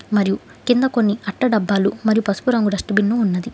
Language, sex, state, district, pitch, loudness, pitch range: Telugu, female, Telangana, Hyderabad, 215 Hz, -19 LUFS, 200-230 Hz